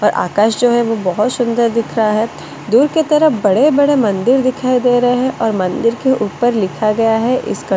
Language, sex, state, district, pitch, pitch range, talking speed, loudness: Hindi, female, Delhi, New Delhi, 235 Hz, 220-255 Hz, 210 wpm, -14 LUFS